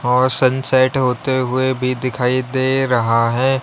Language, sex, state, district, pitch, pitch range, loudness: Hindi, male, Uttar Pradesh, Lalitpur, 130 Hz, 125-130 Hz, -17 LUFS